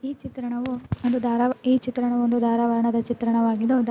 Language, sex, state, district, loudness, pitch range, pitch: Kannada, female, Karnataka, Dharwad, -23 LUFS, 235-250 Hz, 240 Hz